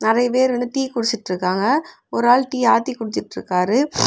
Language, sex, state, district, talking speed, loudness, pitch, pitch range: Tamil, female, Tamil Nadu, Kanyakumari, 130 wpm, -19 LUFS, 245 Hz, 220-260 Hz